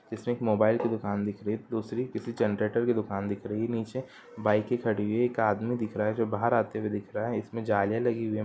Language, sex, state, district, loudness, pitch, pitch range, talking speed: Hindi, male, Bihar, Sitamarhi, -29 LUFS, 110 Hz, 105-115 Hz, 265 wpm